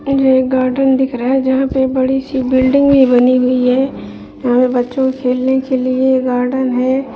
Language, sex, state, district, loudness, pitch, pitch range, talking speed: Hindi, female, Bihar, Bhagalpur, -13 LUFS, 260 Hz, 255-265 Hz, 200 wpm